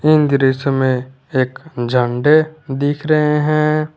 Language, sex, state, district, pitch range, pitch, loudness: Hindi, male, Jharkhand, Garhwa, 130-155 Hz, 145 Hz, -16 LUFS